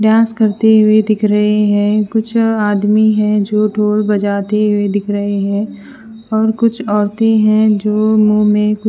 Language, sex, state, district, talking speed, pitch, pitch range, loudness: Hindi, female, Punjab, Fazilka, 155 wpm, 210 Hz, 210-220 Hz, -13 LUFS